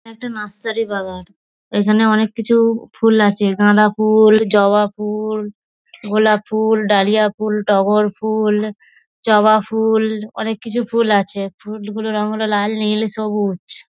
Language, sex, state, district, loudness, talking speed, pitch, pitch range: Bengali, female, West Bengal, North 24 Parganas, -16 LUFS, 120 wpm, 215 Hz, 205-220 Hz